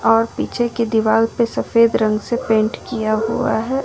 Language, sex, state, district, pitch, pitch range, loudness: Hindi, female, Jharkhand, Ranchi, 225 Hz, 220-235 Hz, -18 LUFS